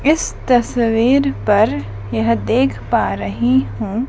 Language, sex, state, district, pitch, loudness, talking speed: Hindi, female, Madhya Pradesh, Dhar, 200 Hz, -17 LUFS, 115 wpm